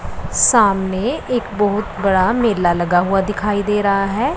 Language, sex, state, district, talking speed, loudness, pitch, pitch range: Hindi, male, Punjab, Pathankot, 150 wpm, -16 LUFS, 205 Hz, 195-225 Hz